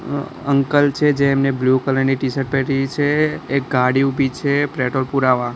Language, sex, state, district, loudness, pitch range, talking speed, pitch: Gujarati, male, Gujarat, Gandhinagar, -18 LUFS, 130-140 Hz, 160 wpm, 135 Hz